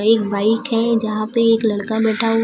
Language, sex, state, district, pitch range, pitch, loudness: Hindi, female, Maharashtra, Gondia, 215-225 Hz, 225 Hz, -17 LUFS